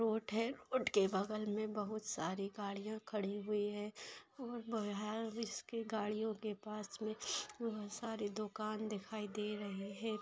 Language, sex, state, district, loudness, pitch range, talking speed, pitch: Hindi, female, Bihar, Jamui, -42 LUFS, 205-220 Hz, 150 wpm, 215 Hz